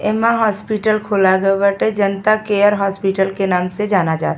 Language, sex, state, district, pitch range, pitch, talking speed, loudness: Bhojpuri, female, Uttar Pradesh, Ghazipur, 195-215 Hz, 200 Hz, 190 wpm, -16 LUFS